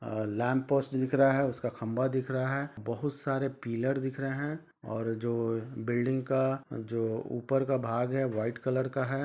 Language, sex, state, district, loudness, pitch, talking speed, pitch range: Hindi, male, Jharkhand, Sahebganj, -31 LUFS, 130 Hz, 190 wpm, 115-135 Hz